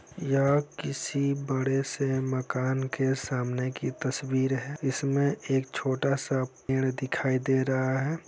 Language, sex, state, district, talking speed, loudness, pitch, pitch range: Hindi, male, Bihar, Saran, 140 wpm, -28 LUFS, 135 Hz, 130-140 Hz